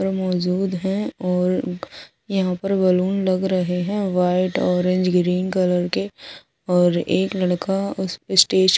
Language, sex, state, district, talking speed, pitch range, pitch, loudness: Hindi, female, Odisha, Sambalpur, 145 wpm, 180-190 Hz, 185 Hz, -20 LUFS